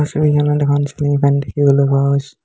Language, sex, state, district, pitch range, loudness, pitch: Assamese, male, Assam, Hailakandi, 140-145 Hz, -15 LUFS, 145 Hz